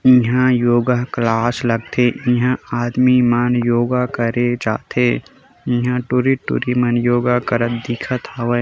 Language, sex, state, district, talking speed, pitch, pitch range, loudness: Chhattisgarhi, male, Chhattisgarh, Korba, 120 wpm, 120 Hz, 120-125 Hz, -17 LUFS